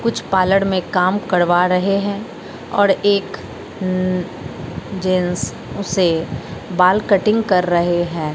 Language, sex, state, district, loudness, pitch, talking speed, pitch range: Hindi, female, Bihar, Katihar, -17 LUFS, 185 Hz, 120 wpm, 175-200 Hz